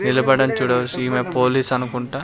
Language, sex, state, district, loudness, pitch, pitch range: Telugu, male, Andhra Pradesh, Sri Satya Sai, -19 LUFS, 125 Hz, 125-135 Hz